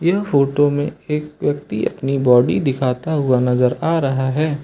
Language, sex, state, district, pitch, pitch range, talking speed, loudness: Hindi, male, Uttar Pradesh, Lucknow, 145 Hz, 130-150 Hz, 170 wpm, -18 LUFS